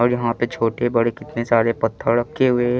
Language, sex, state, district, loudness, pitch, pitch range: Hindi, male, Chandigarh, Chandigarh, -20 LUFS, 120 Hz, 115-120 Hz